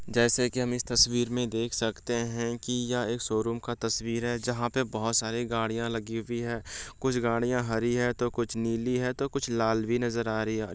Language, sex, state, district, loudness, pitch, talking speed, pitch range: Hindi, male, Bihar, Madhepura, -29 LUFS, 120 Hz, 225 wpm, 115-120 Hz